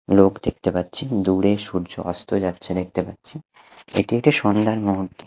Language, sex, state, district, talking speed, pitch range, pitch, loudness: Bengali, male, Odisha, Khordha, 150 wpm, 90-105 Hz, 100 Hz, -21 LUFS